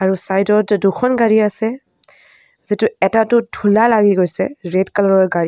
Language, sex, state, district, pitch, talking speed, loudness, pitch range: Assamese, female, Assam, Kamrup Metropolitan, 205 Hz, 175 wpm, -15 LUFS, 190-220 Hz